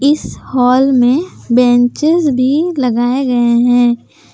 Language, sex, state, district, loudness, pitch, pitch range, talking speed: Hindi, female, Jharkhand, Palamu, -12 LUFS, 250 Hz, 245-280 Hz, 110 wpm